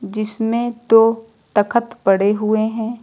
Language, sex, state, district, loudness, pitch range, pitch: Hindi, female, Uttar Pradesh, Lucknow, -17 LUFS, 215-230 Hz, 225 Hz